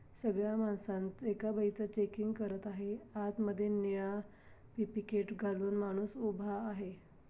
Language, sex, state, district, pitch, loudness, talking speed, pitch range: Marathi, female, Maharashtra, Aurangabad, 205 Hz, -38 LUFS, 105 wpm, 200-215 Hz